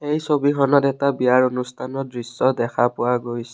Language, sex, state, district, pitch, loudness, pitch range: Assamese, male, Assam, Kamrup Metropolitan, 130 Hz, -20 LUFS, 120-140 Hz